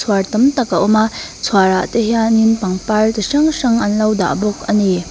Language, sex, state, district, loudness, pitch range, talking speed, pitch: Mizo, female, Mizoram, Aizawl, -15 LUFS, 200-225 Hz, 175 wpm, 215 Hz